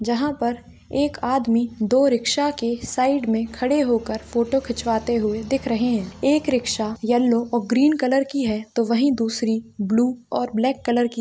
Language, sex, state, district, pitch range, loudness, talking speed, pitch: Hindi, female, Chhattisgarh, Bilaspur, 230-265 Hz, -21 LUFS, 175 wpm, 240 Hz